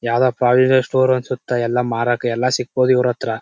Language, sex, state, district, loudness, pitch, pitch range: Kannada, male, Karnataka, Chamarajanagar, -17 LUFS, 125 Hz, 120-130 Hz